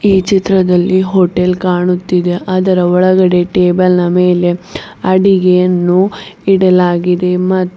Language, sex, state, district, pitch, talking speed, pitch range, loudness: Kannada, female, Karnataka, Bidar, 180 Hz, 95 wpm, 180-185 Hz, -11 LUFS